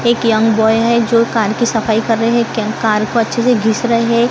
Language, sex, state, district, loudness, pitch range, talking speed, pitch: Hindi, female, Maharashtra, Gondia, -14 LUFS, 220-235 Hz, 250 wpm, 230 Hz